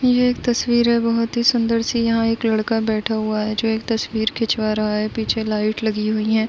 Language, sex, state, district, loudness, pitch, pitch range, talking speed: Hindi, female, Uttar Pradesh, Muzaffarnagar, -19 LUFS, 225 Hz, 215-230 Hz, 220 wpm